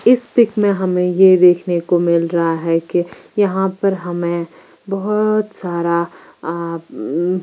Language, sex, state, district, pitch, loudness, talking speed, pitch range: Hindi, female, Bihar, Patna, 180 Hz, -17 LUFS, 135 wpm, 170-195 Hz